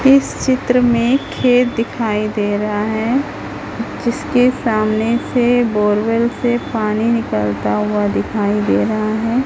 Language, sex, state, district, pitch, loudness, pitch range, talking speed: Hindi, female, Chhattisgarh, Raipur, 230 Hz, -16 LUFS, 210-245 Hz, 125 wpm